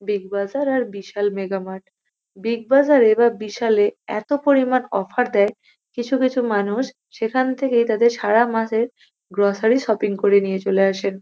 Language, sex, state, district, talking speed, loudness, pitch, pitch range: Bengali, female, West Bengal, North 24 Parganas, 165 wpm, -19 LUFS, 220 Hz, 200-250 Hz